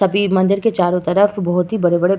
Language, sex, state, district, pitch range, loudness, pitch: Hindi, female, Uttar Pradesh, Varanasi, 180-200 Hz, -16 LUFS, 190 Hz